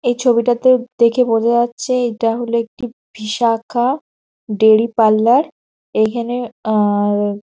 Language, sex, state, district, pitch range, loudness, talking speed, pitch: Bengali, female, West Bengal, Paschim Medinipur, 220-245 Hz, -16 LUFS, 120 wpm, 235 Hz